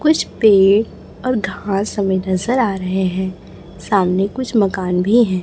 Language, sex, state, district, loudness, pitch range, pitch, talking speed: Hindi, female, Chhattisgarh, Raipur, -17 LUFS, 185-220 Hz, 195 Hz, 155 wpm